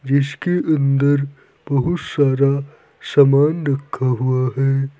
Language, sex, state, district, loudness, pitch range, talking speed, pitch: Hindi, male, Uttar Pradesh, Saharanpur, -18 LUFS, 135-145 Hz, 95 wpm, 140 Hz